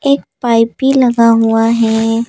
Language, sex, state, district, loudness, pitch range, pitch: Hindi, female, Madhya Pradesh, Bhopal, -12 LUFS, 225-255 Hz, 230 Hz